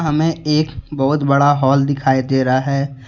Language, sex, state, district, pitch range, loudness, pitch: Hindi, male, Jharkhand, Deoghar, 135-150 Hz, -16 LUFS, 140 Hz